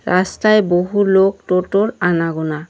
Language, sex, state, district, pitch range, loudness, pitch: Bengali, female, West Bengal, Cooch Behar, 175-200 Hz, -16 LUFS, 180 Hz